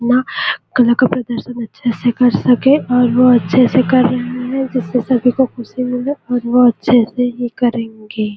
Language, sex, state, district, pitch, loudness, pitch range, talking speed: Hindi, female, Chhattisgarh, Bilaspur, 245 Hz, -14 LUFS, 240-250 Hz, 185 wpm